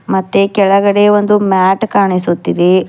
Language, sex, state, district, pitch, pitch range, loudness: Kannada, female, Karnataka, Bidar, 195 Hz, 185-205 Hz, -11 LUFS